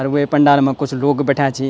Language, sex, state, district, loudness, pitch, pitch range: Garhwali, male, Uttarakhand, Tehri Garhwal, -15 LUFS, 140 Hz, 135-145 Hz